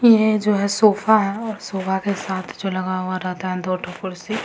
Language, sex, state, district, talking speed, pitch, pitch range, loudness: Hindi, female, Bihar, Samastipur, 230 wpm, 195 Hz, 185-215 Hz, -21 LUFS